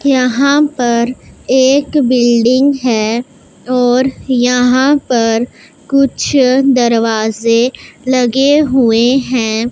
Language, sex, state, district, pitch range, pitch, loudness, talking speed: Hindi, female, Punjab, Pathankot, 235-270 Hz, 250 Hz, -12 LUFS, 80 wpm